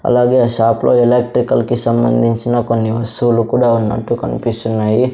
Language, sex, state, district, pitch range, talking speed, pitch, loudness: Telugu, male, Andhra Pradesh, Sri Satya Sai, 115-120 Hz, 140 wpm, 115 Hz, -14 LUFS